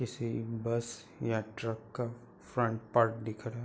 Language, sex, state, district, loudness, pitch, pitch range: Hindi, male, Uttar Pradesh, Hamirpur, -35 LUFS, 115 Hz, 115-120 Hz